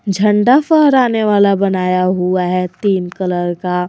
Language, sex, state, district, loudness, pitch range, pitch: Hindi, female, Jharkhand, Garhwa, -14 LUFS, 180-210 Hz, 190 Hz